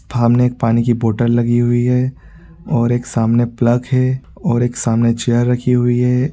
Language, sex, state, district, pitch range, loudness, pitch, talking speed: Hindi, male, Bihar, East Champaran, 120-125 Hz, -15 LUFS, 120 Hz, 190 wpm